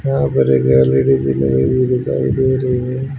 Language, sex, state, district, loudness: Hindi, male, Haryana, Rohtak, -15 LUFS